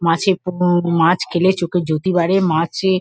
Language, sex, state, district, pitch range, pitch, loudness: Bengali, female, West Bengal, Kolkata, 170-185 Hz, 175 Hz, -17 LUFS